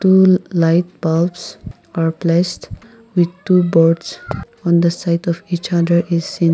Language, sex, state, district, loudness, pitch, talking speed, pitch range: English, female, Nagaland, Kohima, -16 LUFS, 170 Hz, 145 wpm, 170-180 Hz